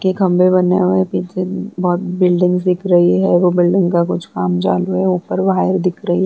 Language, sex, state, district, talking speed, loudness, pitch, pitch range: Hindi, female, Bihar, Vaishali, 210 wpm, -15 LUFS, 180 Hz, 175-185 Hz